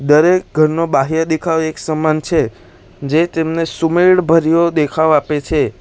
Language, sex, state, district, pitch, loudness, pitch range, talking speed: Gujarati, male, Gujarat, Valsad, 160 Hz, -14 LUFS, 155-165 Hz, 145 wpm